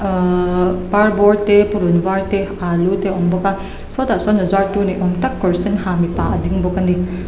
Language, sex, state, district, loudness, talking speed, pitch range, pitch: Mizo, female, Mizoram, Aizawl, -16 LUFS, 230 wpm, 180-200 Hz, 190 Hz